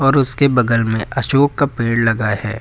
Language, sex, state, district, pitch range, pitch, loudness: Hindi, male, Uttar Pradesh, Lucknow, 110-140 Hz, 120 Hz, -16 LUFS